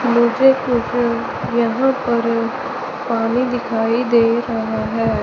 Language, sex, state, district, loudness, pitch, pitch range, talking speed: Hindi, male, Chandigarh, Chandigarh, -18 LUFS, 235 Hz, 230-250 Hz, 105 wpm